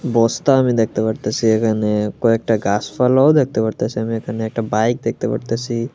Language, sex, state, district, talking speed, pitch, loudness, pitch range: Bengali, male, Tripura, West Tripura, 150 wpm, 115 Hz, -18 LUFS, 110-120 Hz